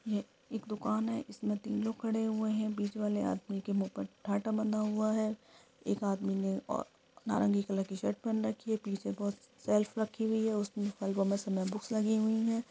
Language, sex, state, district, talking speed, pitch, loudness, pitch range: Hindi, female, Bihar, Supaul, 210 wpm, 215 Hz, -34 LUFS, 200-220 Hz